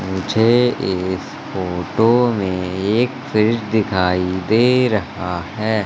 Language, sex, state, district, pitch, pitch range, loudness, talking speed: Hindi, male, Madhya Pradesh, Katni, 105 Hz, 95-115 Hz, -18 LUFS, 100 wpm